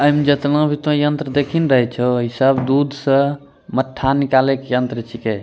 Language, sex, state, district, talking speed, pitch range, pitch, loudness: Angika, male, Bihar, Bhagalpur, 200 wpm, 125-145 Hz, 135 Hz, -17 LUFS